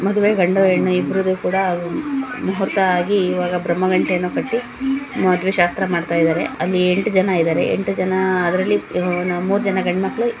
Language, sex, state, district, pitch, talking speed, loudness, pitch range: Kannada, female, Karnataka, Dakshina Kannada, 185 Hz, 155 wpm, -18 LUFS, 180-200 Hz